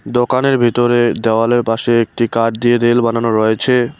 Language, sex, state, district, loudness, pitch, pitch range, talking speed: Bengali, male, West Bengal, Cooch Behar, -14 LUFS, 120 Hz, 115-120 Hz, 150 wpm